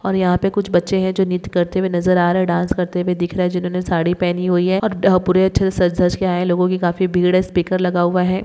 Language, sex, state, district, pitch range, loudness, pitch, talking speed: Hindi, female, West Bengal, Paschim Medinipur, 180-185 Hz, -17 LUFS, 180 Hz, 300 wpm